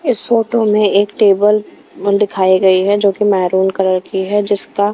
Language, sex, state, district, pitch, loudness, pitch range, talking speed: Hindi, female, Himachal Pradesh, Shimla, 200 Hz, -13 LUFS, 190-210 Hz, 180 wpm